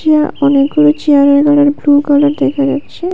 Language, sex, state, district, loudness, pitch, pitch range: Bengali, female, Tripura, West Tripura, -10 LUFS, 290 Hz, 285-300 Hz